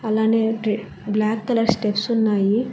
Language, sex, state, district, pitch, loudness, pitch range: Telugu, female, Telangana, Hyderabad, 220 Hz, -21 LUFS, 210-225 Hz